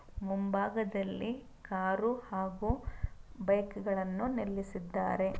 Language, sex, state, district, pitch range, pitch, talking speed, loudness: Kannada, female, Karnataka, Mysore, 190-215 Hz, 200 Hz, 65 wpm, -35 LUFS